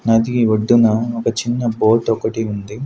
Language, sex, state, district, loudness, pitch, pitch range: Telugu, male, Andhra Pradesh, Sri Satya Sai, -17 LUFS, 115 Hz, 110-115 Hz